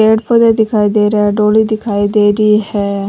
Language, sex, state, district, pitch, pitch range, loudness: Rajasthani, female, Rajasthan, Churu, 210 Hz, 205-220 Hz, -12 LUFS